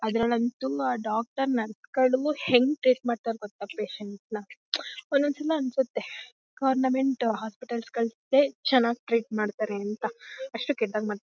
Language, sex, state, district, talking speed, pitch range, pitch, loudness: Kannada, female, Karnataka, Mysore, 130 wpm, 220-265 Hz, 235 Hz, -27 LUFS